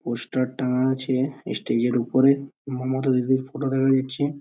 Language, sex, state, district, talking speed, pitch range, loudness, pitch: Bengali, male, West Bengal, Purulia, 175 wpm, 130-135 Hz, -23 LUFS, 130 Hz